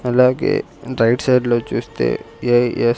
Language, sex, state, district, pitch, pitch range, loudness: Telugu, male, Andhra Pradesh, Sri Satya Sai, 120 Hz, 120-125 Hz, -18 LUFS